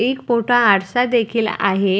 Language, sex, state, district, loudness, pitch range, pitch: Marathi, female, Maharashtra, Dhule, -17 LUFS, 200-245 Hz, 235 Hz